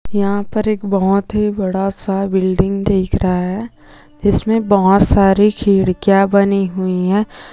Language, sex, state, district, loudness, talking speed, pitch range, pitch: Hindi, female, Andhra Pradesh, Chittoor, -15 LUFS, 135 wpm, 190-205 Hz, 195 Hz